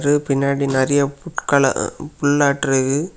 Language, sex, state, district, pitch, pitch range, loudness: Tamil, male, Tamil Nadu, Kanyakumari, 140 Hz, 135-145 Hz, -18 LUFS